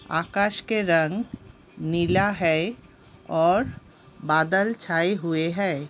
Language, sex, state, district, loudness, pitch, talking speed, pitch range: Hindi, female, Uttar Pradesh, Hamirpur, -23 LUFS, 170 Hz, 100 wpm, 160-205 Hz